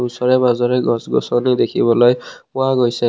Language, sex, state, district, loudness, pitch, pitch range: Assamese, male, Assam, Kamrup Metropolitan, -16 LUFS, 125 Hz, 120-125 Hz